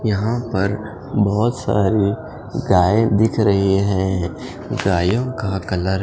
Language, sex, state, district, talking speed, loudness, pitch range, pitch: Hindi, male, Punjab, Fazilka, 120 wpm, -19 LUFS, 95-110 Hz, 100 Hz